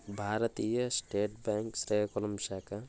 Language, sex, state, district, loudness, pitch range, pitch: Telugu, male, Andhra Pradesh, Srikakulam, -34 LUFS, 105-110 Hz, 105 Hz